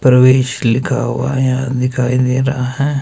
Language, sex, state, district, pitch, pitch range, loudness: Hindi, male, Himachal Pradesh, Shimla, 130 Hz, 125-130 Hz, -14 LUFS